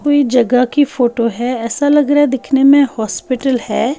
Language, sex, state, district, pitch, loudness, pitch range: Hindi, female, Bihar, Patna, 255 Hz, -13 LUFS, 240-285 Hz